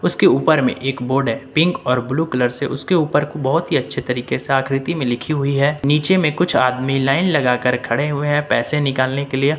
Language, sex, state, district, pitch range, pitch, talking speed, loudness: Hindi, male, Jharkhand, Ranchi, 130-150 Hz, 140 Hz, 225 wpm, -18 LUFS